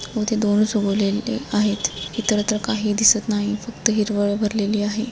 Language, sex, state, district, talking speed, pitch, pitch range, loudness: Marathi, female, Maharashtra, Dhule, 140 wpm, 210 Hz, 205-220 Hz, -21 LUFS